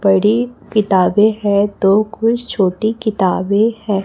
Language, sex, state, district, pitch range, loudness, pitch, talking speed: Hindi, female, Chhattisgarh, Raipur, 195-220 Hz, -15 LUFS, 210 Hz, 120 wpm